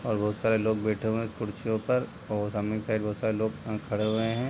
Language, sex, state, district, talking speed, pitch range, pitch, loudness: Hindi, male, Bihar, East Champaran, 280 wpm, 105-110 Hz, 110 Hz, -29 LUFS